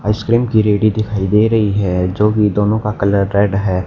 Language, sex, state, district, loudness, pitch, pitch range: Hindi, male, Haryana, Jhajjar, -15 LUFS, 105 Hz, 100-110 Hz